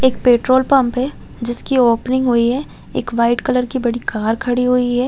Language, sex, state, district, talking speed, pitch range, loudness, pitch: Hindi, female, Chhattisgarh, Raigarh, 200 wpm, 240-260 Hz, -16 LUFS, 245 Hz